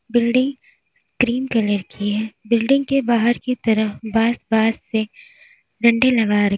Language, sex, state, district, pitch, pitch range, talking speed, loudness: Hindi, female, Uttar Pradesh, Lalitpur, 235 Hz, 220-255 Hz, 145 wpm, -19 LUFS